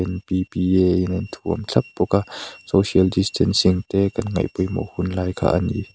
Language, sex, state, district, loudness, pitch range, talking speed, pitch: Mizo, male, Mizoram, Aizawl, -21 LUFS, 90-100 Hz, 160 wpm, 95 Hz